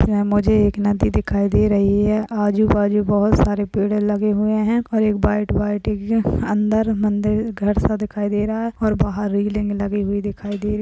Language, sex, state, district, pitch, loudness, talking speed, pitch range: Hindi, female, Uttar Pradesh, Hamirpur, 210 Hz, -19 LUFS, 200 wpm, 205-215 Hz